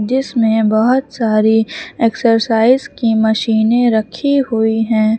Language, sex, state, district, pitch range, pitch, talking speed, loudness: Hindi, female, Uttar Pradesh, Lucknow, 220-240 Hz, 225 Hz, 105 wpm, -14 LUFS